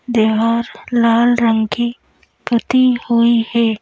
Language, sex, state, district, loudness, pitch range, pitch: Hindi, female, Madhya Pradesh, Bhopal, -15 LUFS, 230-240 Hz, 235 Hz